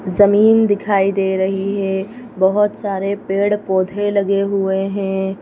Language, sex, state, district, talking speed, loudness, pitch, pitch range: Hindi, female, Madhya Pradesh, Bhopal, 120 wpm, -17 LUFS, 195 Hz, 190-205 Hz